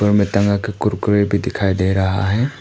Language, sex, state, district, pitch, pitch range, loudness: Hindi, male, Arunachal Pradesh, Papum Pare, 100 Hz, 95-105 Hz, -17 LUFS